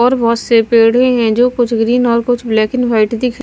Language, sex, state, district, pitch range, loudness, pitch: Hindi, female, Maharashtra, Washim, 230-245 Hz, -12 LUFS, 235 Hz